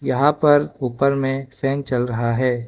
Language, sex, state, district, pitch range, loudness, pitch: Hindi, male, Arunachal Pradesh, Lower Dibang Valley, 125-140 Hz, -20 LUFS, 135 Hz